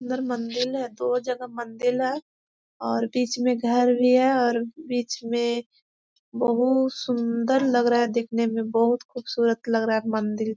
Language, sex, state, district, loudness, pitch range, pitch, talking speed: Hindi, female, Chhattisgarh, Korba, -24 LUFS, 235-250 Hz, 240 Hz, 165 wpm